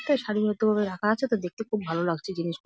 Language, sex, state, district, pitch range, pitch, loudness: Bengali, female, West Bengal, Jalpaiguri, 175-220 Hz, 210 Hz, -27 LUFS